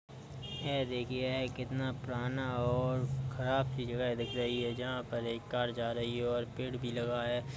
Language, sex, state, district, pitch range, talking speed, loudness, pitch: Hindi, male, Uttar Pradesh, Budaun, 120-130 Hz, 190 wpm, -36 LUFS, 125 Hz